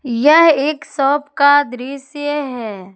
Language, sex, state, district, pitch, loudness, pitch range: Hindi, female, Jharkhand, Ranchi, 285 Hz, -15 LUFS, 250-290 Hz